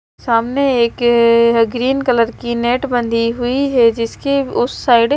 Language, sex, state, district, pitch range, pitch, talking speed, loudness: Hindi, female, Maharashtra, Mumbai Suburban, 230-255 Hz, 240 Hz, 150 wpm, -15 LUFS